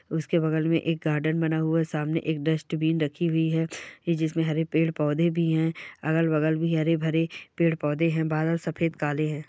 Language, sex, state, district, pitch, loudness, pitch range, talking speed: Hindi, female, Bihar, Darbhanga, 160 Hz, -26 LUFS, 155-165 Hz, 190 wpm